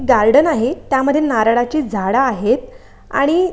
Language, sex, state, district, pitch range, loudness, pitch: Marathi, female, Maharashtra, Aurangabad, 230-300 Hz, -16 LUFS, 265 Hz